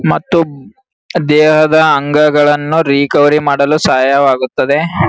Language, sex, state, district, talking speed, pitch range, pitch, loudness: Kannada, male, Karnataka, Gulbarga, 85 wpm, 140-160 Hz, 150 Hz, -11 LUFS